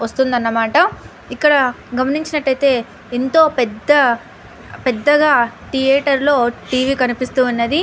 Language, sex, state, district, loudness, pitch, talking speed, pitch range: Telugu, female, Andhra Pradesh, Anantapur, -16 LUFS, 255 Hz, 75 wpm, 240-285 Hz